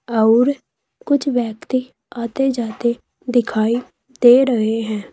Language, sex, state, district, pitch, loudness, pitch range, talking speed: Hindi, female, Uttar Pradesh, Saharanpur, 240 Hz, -18 LUFS, 225-260 Hz, 105 wpm